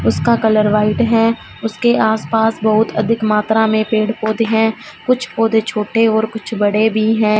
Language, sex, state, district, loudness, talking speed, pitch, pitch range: Hindi, female, Punjab, Fazilka, -15 LUFS, 180 wpm, 220 Hz, 215-225 Hz